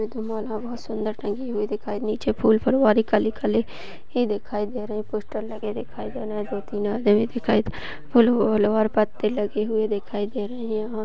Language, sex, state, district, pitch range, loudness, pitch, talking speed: Hindi, female, Maharashtra, Dhule, 210-225 Hz, -24 LUFS, 215 Hz, 200 wpm